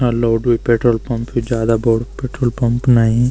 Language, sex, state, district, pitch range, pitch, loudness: Garhwali, male, Uttarakhand, Uttarkashi, 115-120 Hz, 120 Hz, -16 LUFS